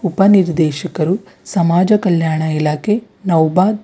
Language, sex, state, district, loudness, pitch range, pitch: Kannada, female, Karnataka, Bidar, -15 LUFS, 160-200 Hz, 180 Hz